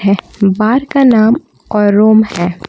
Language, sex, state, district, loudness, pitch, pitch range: Hindi, female, Jharkhand, Palamu, -11 LUFS, 215 Hz, 200-230 Hz